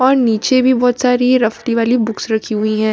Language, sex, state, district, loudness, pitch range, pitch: Hindi, female, Bihar, Katihar, -14 LUFS, 220-255 Hz, 235 Hz